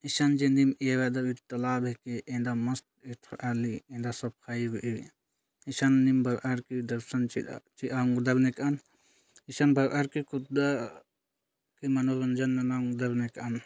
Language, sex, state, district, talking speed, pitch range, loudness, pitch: Sadri, male, Chhattisgarh, Jashpur, 115 wpm, 120-135 Hz, -30 LUFS, 125 Hz